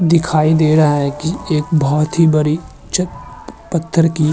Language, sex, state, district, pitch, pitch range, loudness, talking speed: Hindi, male, Uttar Pradesh, Hamirpur, 155 Hz, 155-165 Hz, -15 LUFS, 180 wpm